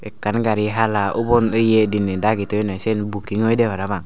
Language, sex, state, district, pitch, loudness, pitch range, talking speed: Chakma, male, Tripura, Unakoti, 105 Hz, -19 LUFS, 105-115 Hz, 175 wpm